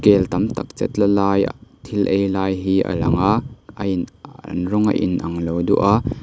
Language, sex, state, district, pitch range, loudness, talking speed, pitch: Mizo, male, Mizoram, Aizawl, 90-105 Hz, -19 LUFS, 210 wpm, 100 Hz